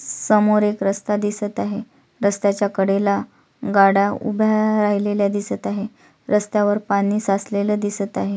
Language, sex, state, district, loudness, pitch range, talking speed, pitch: Marathi, female, Maharashtra, Solapur, -20 LUFS, 200-210 Hz, 120 wpm, 205 Hz